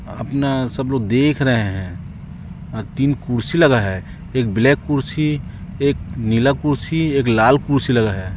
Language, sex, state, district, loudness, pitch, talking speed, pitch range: Hindi, male, Chhattisgarh, Raipur, -18 LUFS, 130 Hz, 160 wpm, 115-140 Hz